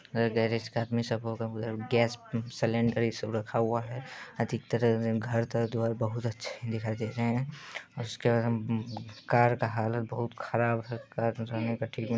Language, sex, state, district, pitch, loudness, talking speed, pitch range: Hindi, male, Bihar, Saharsa, 115 Hz, -31 LUFS, 165 wpm, 115-120 Hz